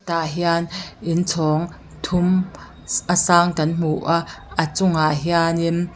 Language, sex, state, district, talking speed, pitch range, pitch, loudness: Mizo, female, Mizoram, Aizawl, 130 wpm, 165-175 Hz, 170 Hz, -20 LUFS